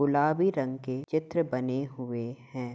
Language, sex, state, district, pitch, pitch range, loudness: Hindi, male, Uttar Pradesh, Hamirpur, 130 Hz, 125-150 Hz, -30 LUFS